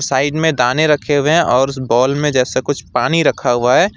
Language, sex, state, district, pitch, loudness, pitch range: Hindi, male, West Bengal, Alipurduar, 135 Hz, -15 LUFS, 125-150 Hz